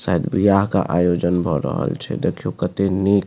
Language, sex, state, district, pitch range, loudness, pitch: Maithili, male, Bihar, Supaul, 90-100 Hz, -19 LUFS, 95 Hz